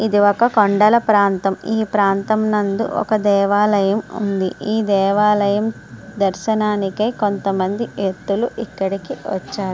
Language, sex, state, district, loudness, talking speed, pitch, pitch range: Telugu, female, Andhra Pradesh, Srikakulam, -18 LUFS, 105 wpm, 205 Hz, 195-215 Hz